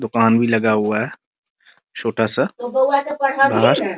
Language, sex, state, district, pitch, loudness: Hindi, male, Bihar, Muzaffarpur, 115 Hz, -18 LUFS